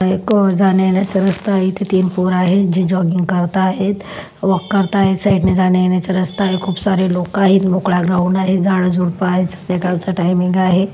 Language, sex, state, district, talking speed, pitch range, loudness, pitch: Marathi, female, Maharashtra, Solapur, 175 wpm, 180-195 Hz, -15 LUFS, 185 Hz